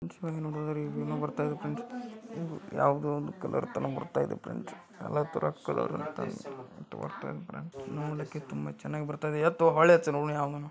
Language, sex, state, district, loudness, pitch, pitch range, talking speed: Kannada, male, Karnataka, Bijapur, -32 LUFS, 150 Hz, 145-165 Hz, 145 wpm